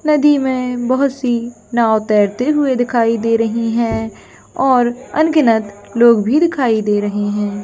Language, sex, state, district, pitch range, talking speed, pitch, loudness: Hindi, female, Jharkhand, Jamtara, 220-260 Hz, 140 wpm, 235 Hz, -15 LUFS